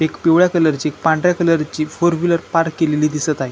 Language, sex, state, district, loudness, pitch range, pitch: Marathi, male, Maharashtra, Chandrapur, -16 LUFS, 155-170 Hz, 160 Hz